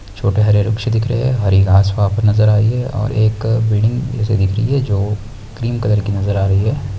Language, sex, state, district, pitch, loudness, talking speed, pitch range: Hindi, male, Uttarakhand, Tehri Garhwal, 105 Hz, -15 LUFS, 230 wpm, 100-115 Hz